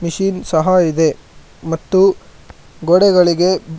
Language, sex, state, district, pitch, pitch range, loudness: Kannada, male, Karnataka, Bangalore, 170 Hz, 160-185 Hz, -14 LUFS